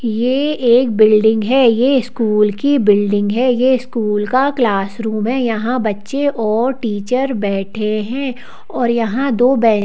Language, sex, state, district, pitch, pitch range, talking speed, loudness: Hindi, female, Madhya Pradesh, Bhopal, 235 Hz, 215-255 Hz, 145 wpm, -15 LUFS